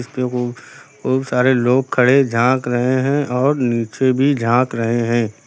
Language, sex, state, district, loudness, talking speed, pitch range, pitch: Hindi, male, Uttar Pradesh, Lucknow, -17 LUFS, 145 wpm, 120-130 Hz, 125 Hz